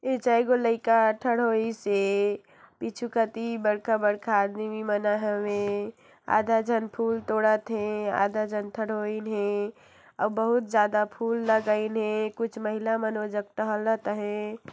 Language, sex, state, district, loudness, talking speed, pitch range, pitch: Hindi, female, Chhattisgarh, Sarguja, -27 LUFS, 120 wpm, 210-225 Hz, 215 Hz